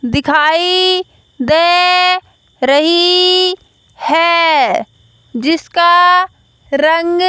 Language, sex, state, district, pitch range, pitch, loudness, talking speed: Hindi, female, Haryana, Jhajjar, 300-360 Hz, 340 Hz, -11 LUFS, 50 wpm